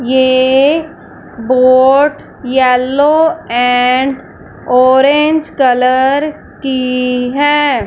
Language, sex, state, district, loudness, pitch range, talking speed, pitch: Hindi, female, Punjab, Fazilka, -11 LUFS, 255-290 Hz, 60 wpm, 260 Hz